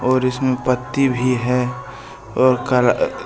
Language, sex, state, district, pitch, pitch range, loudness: Hindi, male, Jharkhand, Deoghar, 125 Hz, 125-130 Hz, -18 LUFS